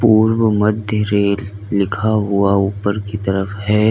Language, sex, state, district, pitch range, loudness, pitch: Hindi, male, Uttar Pradesh, Lalitpur, 100-105 Hz, -17 LUFS, 105 Hz